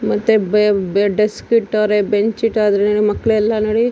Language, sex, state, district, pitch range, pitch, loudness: Kannada, female, Karnataka, Dakshina Kannada, 205-220 Hz, 210 Hz, -16 LUFS